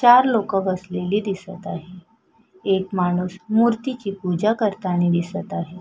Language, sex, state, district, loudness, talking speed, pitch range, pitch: Marathi, female, Maharashtra, Sindhudurg, -22 LUFS, 135 wpm, 180-220 Hz, 195 Hz